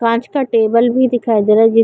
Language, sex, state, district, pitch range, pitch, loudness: Hindi, female, Chhattisgarh, Bilaspur, 225-245 Hz, 230 Hz, -13 LUFS